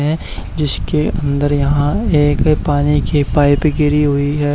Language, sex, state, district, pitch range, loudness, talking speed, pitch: Hindi, male, Haryana, Charkhi Dadri, 145-150 Hz, -15 LUFS, 145 wpm, 145 Hz